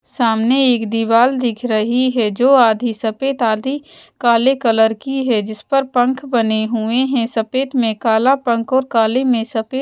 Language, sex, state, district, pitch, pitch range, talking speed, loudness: Hindi, female, Bihar, West Champaran, 240 Hz, 225-260 Hz, 175 wpm, -16 LUFS